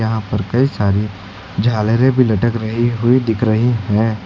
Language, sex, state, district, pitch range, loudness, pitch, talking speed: Hindi, male, Uttar Pradesh, Lucknow, 105-120 Hz, -16 LUFS, 110 Hz, 170 wpm